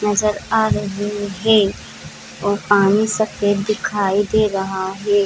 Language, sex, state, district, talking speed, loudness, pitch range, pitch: Hindi, female, Jharkhand, Jamtara, 125 wpm, -18 LUFS, 195-210 Hz, 205 Hz